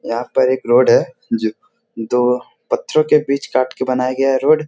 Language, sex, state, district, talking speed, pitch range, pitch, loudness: Hindi, male, Bihar, Jahanabad, 215 wpm, 125-140 Hz, 130 Hz, -16 LUFS